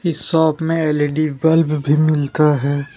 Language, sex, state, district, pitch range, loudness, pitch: Hindi, male, Jharkhand, Deoghar, 145-160 Hz, -16 LUFS, 155 Hz